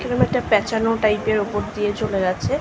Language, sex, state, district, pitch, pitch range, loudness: Bengali, female, West Bengal, North 24 Parganas, 215 Hz, 205-220 Hz, -20 LUFS